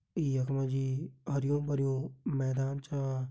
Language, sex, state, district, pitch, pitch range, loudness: Hindi, male, Uttarakhand, Tehri Garhwal, 135 Hz, 135-140 Hz, -33 LUFS